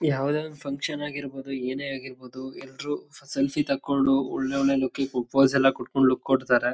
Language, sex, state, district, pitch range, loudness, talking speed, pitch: Kannada, male, Karnataka, Shimoga, 130-145 Hz, -26 LUFS, 60 wpm, 135 Hz